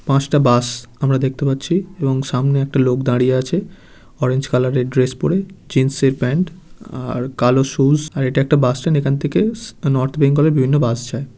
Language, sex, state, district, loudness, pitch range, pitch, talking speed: Bengali, male, West Bengal, Kolkata, -17 LUFS, 125-150 Hz, 135 Hz, 190 wpm